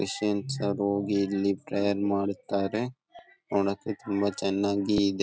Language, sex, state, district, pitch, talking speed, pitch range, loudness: Kannada, male, Karnataka, Bellary, 100 Hz, 115 wpm, 100-105 Hz, -28 LUFS